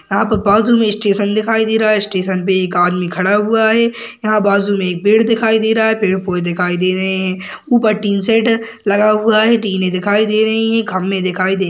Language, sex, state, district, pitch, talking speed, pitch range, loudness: Hindi, male, Chhattisgarh, Sarguja, 205 Hz, 240 wpm, 190-220 Hz, -14 LUFS